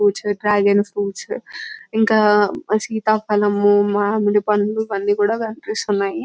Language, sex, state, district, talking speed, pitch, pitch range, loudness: Telugu, female, Telangana, Nalgonda, 105 wpm, 210 Hz, 205-220 Hz, -18 LUFS